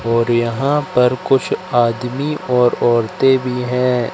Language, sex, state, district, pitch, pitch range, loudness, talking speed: Hindi, male, Madhya Pradesh, Katni, 125 Hz, 120-135 Hz, -16 LUFS, 130 wpm